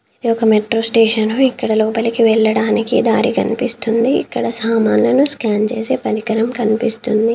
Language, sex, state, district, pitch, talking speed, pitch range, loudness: Telugu, female, Telangana, Komaram Bheem, 225 Hz, 120 wpm, 220-235 Hz, -15 LUFS